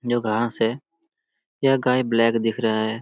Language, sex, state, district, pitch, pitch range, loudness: Hindi, male, Bihar, Lakhisarai, 120 Hz, 115-135 Hz, -21 LUFS